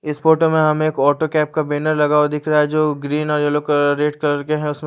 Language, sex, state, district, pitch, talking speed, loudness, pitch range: Hindi, male, Chandigarh, Chandigarh, 150 Hz, 295 wpm, -17 LUFS, 150-155 Hz